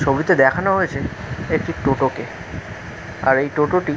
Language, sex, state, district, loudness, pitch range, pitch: Bengali, male, West Bengal, Kolkata, -19 LUFS, 110-150 Hz, 135 Hz